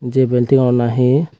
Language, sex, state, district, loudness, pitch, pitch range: Chakma, female, Tripura, West Tripura, -15 LUFS, 125 Hz, 125-130 Hz